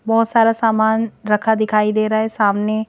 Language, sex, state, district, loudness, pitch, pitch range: Hindi, female, Madhya Pradesh, Bhopal, -17 LUFS, 220 Hz, 215-225 Hz